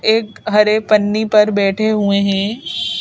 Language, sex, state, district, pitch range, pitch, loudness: Hindi, female, Madhya Pradesh, Bhopal, 205-215 Hz, 210 Hz, -15 LUFS